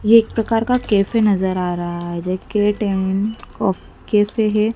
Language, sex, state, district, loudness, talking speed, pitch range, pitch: Hindi, female, Madhya Pradesh, Dhar, -19 LUFS, 140 wpm, 190-220 Hz, 210 Hz